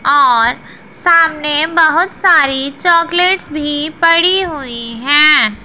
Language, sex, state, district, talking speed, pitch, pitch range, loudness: Hindi, female, Punjab, Pathankot, 95 wpm, 310 Hz, 280-345 Hz, -11 LUFS